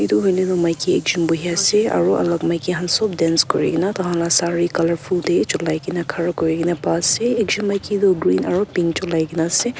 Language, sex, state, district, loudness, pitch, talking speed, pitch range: Nagamese, female, Nagaland, Kohima, -18 LUFS, 175 Hz, 220 wpm, 165-185 Hz